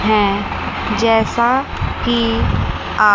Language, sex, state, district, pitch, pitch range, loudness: Hindi, female, Chandigarh, Chandigarh, 225 Hz, 210-235 Hz, -17 LUFS